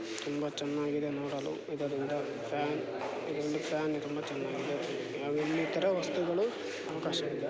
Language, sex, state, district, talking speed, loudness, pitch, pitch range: Kannada, male, Karnataka, Chamarajanagar, 110 wpm, -35 LUFS, 145 Hz, 145-150 Hz